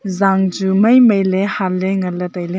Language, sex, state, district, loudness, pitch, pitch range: Wancho, female, Arunachal Pradesh, Longding, -15 LUFS, 190 Hz, 185-195 Hz